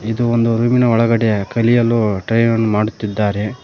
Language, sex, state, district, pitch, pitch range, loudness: Kannada, male, Karnataka, Koppal, 115 Hz, 105-115 Hz, -15 LUFS